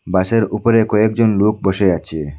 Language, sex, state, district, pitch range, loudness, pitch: Bengali, male, Assam, Hailakandi, 95-110 Hz, -15 LUFS, 105 Hz